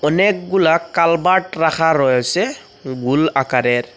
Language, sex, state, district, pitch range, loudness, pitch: Bengali, male, Assam, Hailakandi, 130-170 Hz, -16 LUFS, 160 Hz